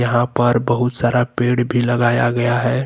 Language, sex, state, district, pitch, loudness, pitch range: Hindi, male, Jharkhand, Deoghar, 120 Hz, -17 LUFS, 120-125 Hz